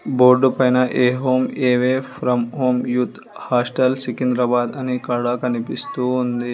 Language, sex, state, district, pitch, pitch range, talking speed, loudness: Telugu, male, Telangana, Hyderabad, 125 Hz, 125-130 Hz, 130 wpm, -19 LUFS